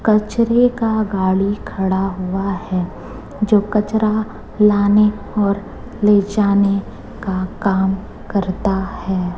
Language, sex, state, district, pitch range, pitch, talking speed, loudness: Hindi, female, Chhattisgarh, Raipur, 190-210 Hz, 200 Hz, 100 wpm, -18 LUFS